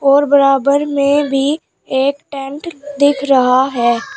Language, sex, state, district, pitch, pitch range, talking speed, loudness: Hindi, female, Uttar Pradesh, Shamli, 280 Hz, 270-285 Hz, 130 wpm, -14 LUFS